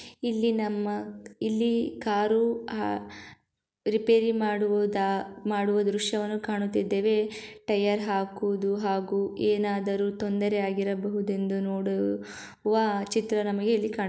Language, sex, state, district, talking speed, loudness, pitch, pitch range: Kannada, female, Karnataka, Gulbarga, 100 wpm, -28 LUFS, 205 Hz, 195-215 Hz